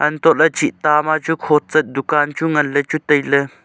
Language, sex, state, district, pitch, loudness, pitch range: Wancho, male, Arunachal Pradesh, Longding, 150 Hz, -16 LUFS, 145-155 Hz